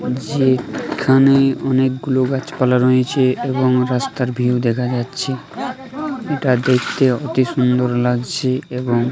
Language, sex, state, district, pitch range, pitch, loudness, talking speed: Bengali, male, Jharkhand, Jamtara, 125-135 Hz, 130 Hz, -17 LUFS, 105 wpm